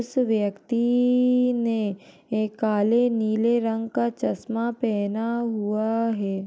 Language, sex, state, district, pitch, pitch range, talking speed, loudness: Hindi, female, Uttar Pradesh, Deoria, 225 Hz, 215-235 Hz, 130 wpm, -24 LUFS